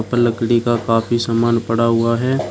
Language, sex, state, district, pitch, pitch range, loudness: Hindi, male, Uttar Pradesh, Shamli, 115 Hz, 115-120 Hz, -17 LUFS